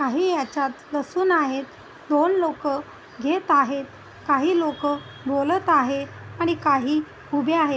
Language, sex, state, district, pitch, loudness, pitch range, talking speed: Marathi, female, Maharashtra, Aurangabad, 290 Hz, -23 LUFS, 275-330 Hz, 125 wpm